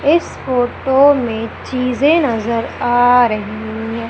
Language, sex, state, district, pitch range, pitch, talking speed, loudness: Hindi, female, Madhya Pradesh, Umaria, 230-265 Hz, 245 Hz, 115 wpm, -15 LUFS